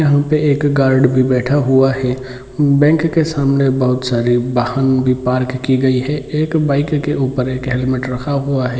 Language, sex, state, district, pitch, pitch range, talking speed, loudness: Hindi, male, Bihar, Muzaffarpur, 130 Hz, 130-145 Hz, 190 wpm, -15 LUFS